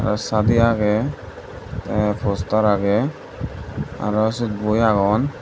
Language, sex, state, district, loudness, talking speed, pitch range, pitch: Chakma, male, Tripura, Dhalai, -20 LUFS, 110 wpm, 105-115 Hz, 105 Hz